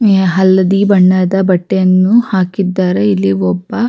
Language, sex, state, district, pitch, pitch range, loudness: Kannada, female, Karnataka, Raichur, 185 Hz, 180-195 Hz, -11 LUFS